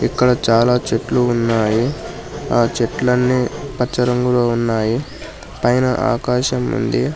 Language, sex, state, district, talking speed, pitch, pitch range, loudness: Telugu, male, Telangana, Hyderabad, 100 wpm, 125 Hz, 120-125 Hz, -17 LUFS